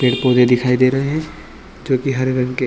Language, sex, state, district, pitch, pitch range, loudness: Hindi, male, Chhattisgarh, Bilaspur, 130 Hz, 125-130 Hz, -16 LUFS